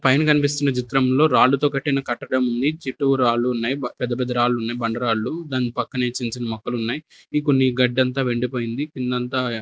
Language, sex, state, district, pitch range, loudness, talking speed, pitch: Telugu, male, Andhra Pradesh, Sri Satya Sai, 120-135 Hz, -21 LUFS, 160 wpm, 125 Hz